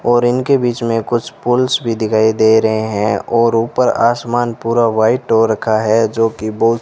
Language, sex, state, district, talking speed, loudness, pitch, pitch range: Hindi, male, Rajasthan, Bikaner, 200 wpm, -14 LUFS, 115 Hz, 110-120 Hz